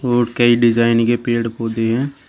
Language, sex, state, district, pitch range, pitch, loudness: Hindi, male, Uttar Pradesh, Shamli, 115-120 Hz, 120 Hz, -16 LUFS